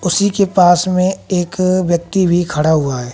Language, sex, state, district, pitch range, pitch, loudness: Hindi, female, Haryana, Jhajjar, 170-185 Hz, 180 Hz, -14 LUFS